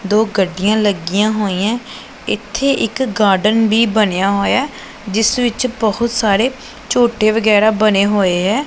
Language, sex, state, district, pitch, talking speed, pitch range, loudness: Punjabi, female, Punjab, Pathankot, 215 Hz, 140 wpm, 205-235 Hz, -15 LUFS